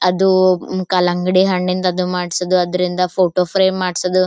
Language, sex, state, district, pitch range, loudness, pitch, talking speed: Kannada, female, Karnataka, Gulbarga, 180-185 Hz, -16 LUFS, 180 Hz, 125 wpm